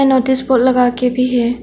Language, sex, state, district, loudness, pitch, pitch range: Hindi, female, Arunachal Pradesh, Longding, -14 LUFS, 255 Hz, 245-260 Hz